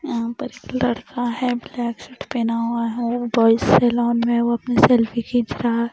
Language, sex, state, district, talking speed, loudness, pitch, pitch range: Hindi, female, Bihar, Kaimur, 200 wpm, -20 LUFS, 235 Hz, 235-245 Hz